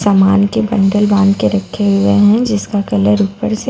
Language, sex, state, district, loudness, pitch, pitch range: Hindi, female, Bihar, Katihar, -13 LUFS, 205 Hz, 195-210 Hz